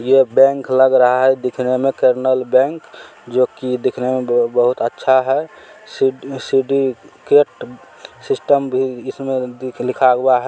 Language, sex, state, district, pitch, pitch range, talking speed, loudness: Maithili, male, Bihar, Supaul, 130 Hz, 125-135 Hz, 155 wpm, -16 LUFS